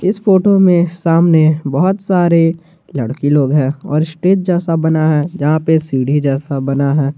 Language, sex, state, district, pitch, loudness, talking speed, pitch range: Hindi, male, Jharkhand, Garhwa, 160 Hz, -13 LUFS, 165 wpm, 145-175 Hz